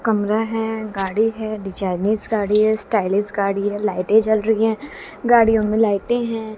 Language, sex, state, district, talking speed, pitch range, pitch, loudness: Hindi, female, Haryana, Jhajjar, 165 wpm, 205-225 Hz, 215 Hz, -19 LUFS